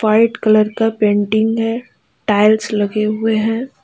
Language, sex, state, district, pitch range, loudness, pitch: Hindi, female, Uttar Pradesh, Lalitpur, 215-225 Hz, -15 LUFS, 220 Hz